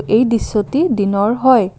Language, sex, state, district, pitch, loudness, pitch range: Assamese, female, Assam, Kamrup Metropolitan, 220 Hz, -15 LUFS, 205-250 Hz